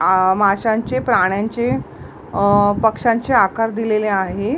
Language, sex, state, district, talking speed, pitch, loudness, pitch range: Marathi, female, Maharashtra, Mumbai Suburban, 90 wpm, 215 Hz, -17 LUFS, 195-230 Hz